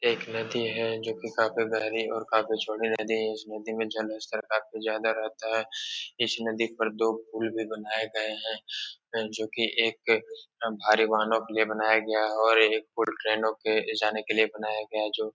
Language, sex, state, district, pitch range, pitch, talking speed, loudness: Hindi, male, Uttar Pradesh, Etah, 110-115 Hz, 110 Hz, 205 wpm, -28 LUFS